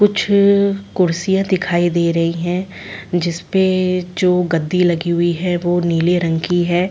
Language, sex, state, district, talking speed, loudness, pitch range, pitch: Hindi, female, Chhattisgarh, Sarguja, 155 wpm, -16 LUFS, 170-185 Hz, 175 Hz